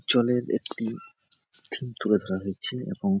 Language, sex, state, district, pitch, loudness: Bengali, male, West Bengal, Jhargram, 125 Hz, -28 LUFS